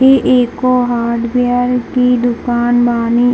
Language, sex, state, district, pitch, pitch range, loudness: Hindi, female, Bihar, Darbhanga, 245 Hz, 240-250 Hz, -13 LUFS